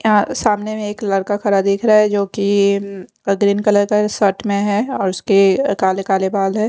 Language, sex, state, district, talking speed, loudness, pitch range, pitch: Hindi, female, Odisha, Khordha, 195 wpm, -16 LUFS, 195-210 Hz, 200 Hz